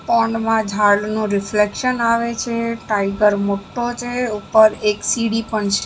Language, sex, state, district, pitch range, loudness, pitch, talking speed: Gujarati, female, Maharashtra, Mumbai Suburban, 210-230 Hz, -18 LUFS, 220 Hz, 145 wpm